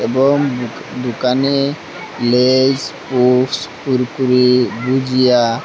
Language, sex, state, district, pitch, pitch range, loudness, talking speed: Bengali, male, Assam, Hailakandi, 125 Hz, 125-135 Hz, -15 LUFS, 75 wpm